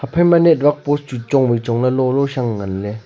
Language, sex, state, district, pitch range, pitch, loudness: Wancho, male, Arunachal Pradesh, Longding, 115-145 Hz, 130 Hz, -16 LUFS